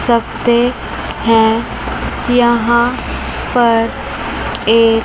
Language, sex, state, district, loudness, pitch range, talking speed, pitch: Hindi, female, Chandigarh, Chandigarh, -14 LUFS, 225-240 Hz, 70 wpm, 235 Hz